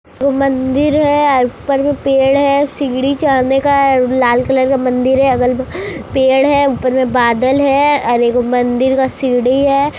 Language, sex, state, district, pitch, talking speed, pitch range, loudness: Hindi, female, Bihar, Kishanganj, 265 Hz, 175 wpm, 255-280 Hz, -13 LUFS